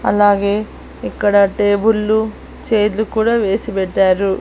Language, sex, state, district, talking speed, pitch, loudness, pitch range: Telugu, female, Andhra Pradesh, Annamaya, 95 wpm, 205 Hz, -15 LUFS, 200-220 Hz